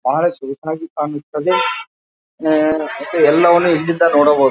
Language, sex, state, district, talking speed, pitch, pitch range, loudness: Kannada, male, Karnataka, Bijapur, 120 wpm, 155 Hz, 150-170 Hz, -16 LUFS